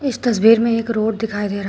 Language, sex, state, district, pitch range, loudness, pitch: Hindi, female, Uttar Pradesh, Shamli, 210-230 Hz, -17 LUFS, 225 Hz